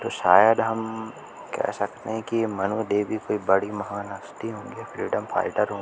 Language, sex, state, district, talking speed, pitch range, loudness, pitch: Hindi, male, Madhya Pradesh, Katni, 165 wpm, 100-110 Hz, -25 LUFS, 105 Hz